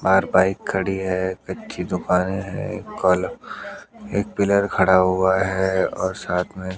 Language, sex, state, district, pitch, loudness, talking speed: Hindi, male, Haryana, Jhajjar, 95 Hz, -21 LUFS, 150 wpm